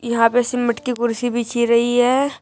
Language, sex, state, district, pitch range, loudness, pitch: Hindi, female, Uttar Pradesh, Shamli, 235-245 Hz, -18 LUFS, 240 Hz